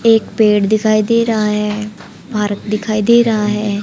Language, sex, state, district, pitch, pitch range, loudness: Hindi, female, Haryana, Charkhi Dadri, 215 Hz, 210-220 Hz, -14 LUFS